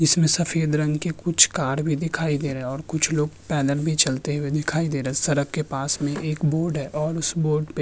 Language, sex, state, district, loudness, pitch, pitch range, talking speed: Hindi, male, Uttar Pradesh, Hamirpur, -23 LUFS, 150 Hz, 145-160 Hz, 260 wpm